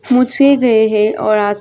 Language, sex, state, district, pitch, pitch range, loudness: Hindi, female, Chhattisgarh, Sarguja, 220 Hz, 215-250 Hz, -12 LUFS